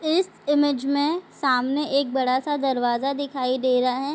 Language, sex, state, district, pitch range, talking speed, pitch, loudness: Hindi, female, Bihar, Kishanganj, 255-290 Hz, 175 wpm, 275 Hz, -23 LUFS